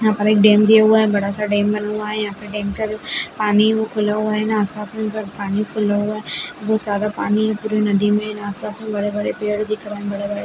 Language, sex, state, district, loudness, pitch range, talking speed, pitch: Kumaoni, female, Uttarakhand, Uttarkashi, -19 LUFS, 205-215 Hz, 260 wpm, 210 Hz